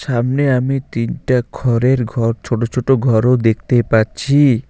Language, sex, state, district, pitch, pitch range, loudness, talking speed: Bengali, male, West Bengal, Alipurduar, 125 Hz, 115-130 Hz, -16 LUFS, 130 wpm